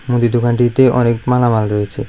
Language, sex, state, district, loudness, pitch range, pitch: Bengali, male, Tripura, South Tripura, -14 LUFS, 120-125 Hz, 120 Hz